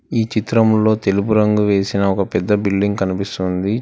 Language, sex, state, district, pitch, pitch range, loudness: Telugu, male, Telangana, Hyderabad, 100 Hz, 100-110 Hz, -17 LUFS